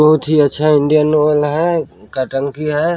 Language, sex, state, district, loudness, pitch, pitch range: Hindi, male, Chhattisgarh, Balrampur, -14 LUFS, 150 Hz, 145-155 Hz